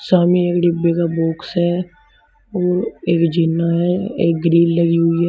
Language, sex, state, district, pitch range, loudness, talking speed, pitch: Hindi, male, Uttar Pradesh, Shamli, 170-180 Hz, -17 LUFS, 170 wpm, 170 Hz